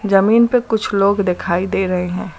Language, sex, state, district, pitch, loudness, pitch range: Hindi, female, Uttar Pradesh, Lucknow, 195 Hz, -16 LUFS, 180-220 Hz